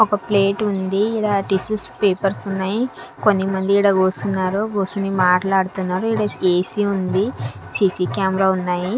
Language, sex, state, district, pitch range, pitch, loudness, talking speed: Telugu, female, Andhra Pradesh, Manyam, 185-205 Hz, 195 Hz, -19 LUFS, 120 wpm